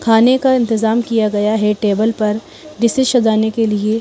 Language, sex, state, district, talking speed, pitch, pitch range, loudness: Hindi, female, Madhya Pradesh, Bhopal, 180 wpm, 225 Hz, 215-235 Hz, -15 LUFS